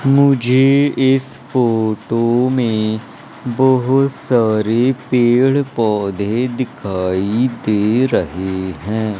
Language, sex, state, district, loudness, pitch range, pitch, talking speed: Hindi, male, Madhya Pradesh, Umaria, -16 LUFS, 110-130 Hz, 120 Hz, 80 wpm